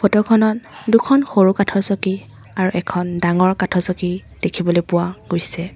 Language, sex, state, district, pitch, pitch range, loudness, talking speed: Assamese, female, Assam, Sonitpur, 185 Hz, 180-200 Hz, -18 LUFS, 145 wpm